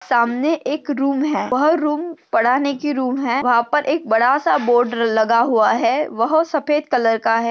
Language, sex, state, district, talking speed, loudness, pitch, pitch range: Hindi, female, Maharashtra, Sindhudurg, 190 wpm, -18 LUFS, 270 Hz, 235-300 Hz